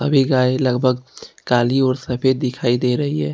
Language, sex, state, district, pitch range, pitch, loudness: Hindi, male, Jharkhand, Ranchi, 125-130 Hz, 130 Hz, -18 LUFS